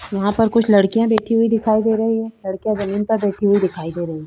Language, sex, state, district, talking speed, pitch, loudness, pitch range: Hindi, female, Uttar Pradesh, Budaun, 265 wpm, 215 Hz, -18 LUFS, 195-225 Hz